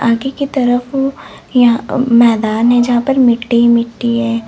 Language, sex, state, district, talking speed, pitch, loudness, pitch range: Hindi, female, Uttar Pradesh, Lalitpur, 160 wpm, 240 Hz, -13 LUFS, 235-260 Hz